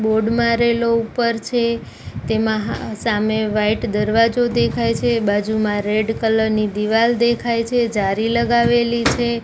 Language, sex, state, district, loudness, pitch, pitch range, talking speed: Gujarati, female, Gujarat, Gandhinagar, -18 LUFS, 225 Hz, 215-235 Hz, 135 wpm